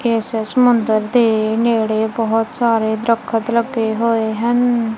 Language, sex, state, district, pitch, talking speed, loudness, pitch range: Punjabi, female, Punjab, Kapurthala, 225 Hz, 120 wpm, -16 LUFS, 220-235 Hz